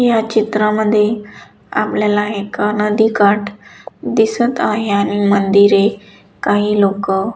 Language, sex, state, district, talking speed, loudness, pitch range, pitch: Marathi, female, Maharashtra, Dhule, 100 wpm, -15 LUFS, 200-215 Hz, 210 Hz